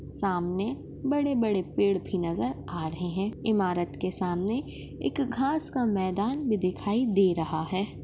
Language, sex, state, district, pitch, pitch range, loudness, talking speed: Hindi, female, Maharashtra, Sindhudurg, 195 Hz, 180-240 Hz, -28 LUFS, 150 wpm